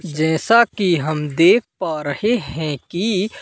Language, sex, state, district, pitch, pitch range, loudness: Hindi, male, Madhya Pradesh, Katni, 170 Hz, 155-210 Hz, -18 LUFS